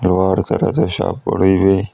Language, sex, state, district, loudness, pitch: Kannada, male, Karnataka, Bidar, -16 LUFS, 95 Hz